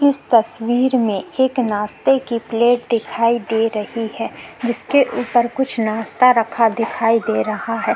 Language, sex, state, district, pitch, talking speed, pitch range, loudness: Hindi, female, Uttarakhand, Tehri Garhwal, 230 Hz, 150 wpm, 225-245 Hz, -18 LUFS